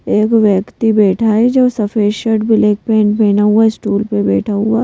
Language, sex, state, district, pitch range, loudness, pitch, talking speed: Hindi, female, Madhya Pradesh, Bhopal, 205-225 Hz, -13 LUFS, 215 Hz, 200 wpm